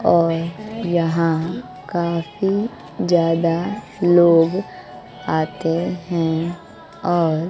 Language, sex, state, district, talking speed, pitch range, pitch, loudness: Hindi, female, Bihar, West Champaran, 70 wpm, 165-180 Hz, 170 Hz, -20 LUFS